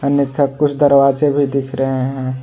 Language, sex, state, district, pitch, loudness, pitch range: Hindi, male, Jharkhand, Ranchi, 140 Hz, -15 LUFS, 135-140 Hz